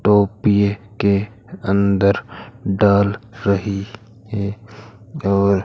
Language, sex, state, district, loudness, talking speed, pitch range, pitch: Hindi, male, Rajasthan, Bikaner, -19 LUFS, 75 wpm, 100-110 Hz, 100 Hz